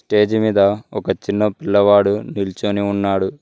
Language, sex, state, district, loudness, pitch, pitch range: Telugu, male, Telangana, Mahabubabad, -17 LUFS, 100 Hz, 100-105 Hz